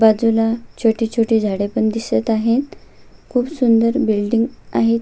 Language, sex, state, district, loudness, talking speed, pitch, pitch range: Marathi, female, Maharashtra, Sindhudurg, -18 LUFS, 130 wpm, 225 Hz, 225-235 Hz